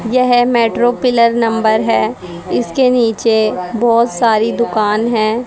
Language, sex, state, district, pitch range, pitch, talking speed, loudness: Hindi, female, Haryana, Rohtak, 220-245 Hz, 230 Hz, 120 wpm, -13 LUFS